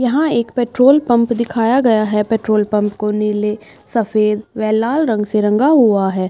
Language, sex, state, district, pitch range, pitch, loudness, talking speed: Hindi, female, Uttar Pradesh, Budaun, 210-240 Hz, 220 Hz, -15 LUFS, 180 wpm